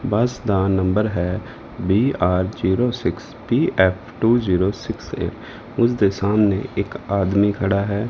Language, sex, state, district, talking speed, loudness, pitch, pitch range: Punjabi, male, Punjab, Fazilka, 135 wpm, -20 LUFS, 100 Hz, 95-115 Hz